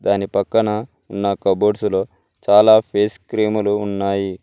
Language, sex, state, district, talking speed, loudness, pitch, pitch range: Telugu, male, Telangana, Mahabubabad, 120 wpm, -18 LUFS, 100 Hz, 100-105 Hz